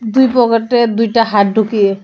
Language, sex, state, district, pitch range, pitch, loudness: Bengali, female, Tripura, West Tripura, 210-235 Hz, 230 Hz, -12 LUFS